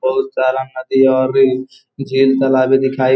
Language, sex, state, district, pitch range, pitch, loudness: Hindi, male, Bihar, Gopalganj, 130-135 Hz, 135 Hz, -14 LUFS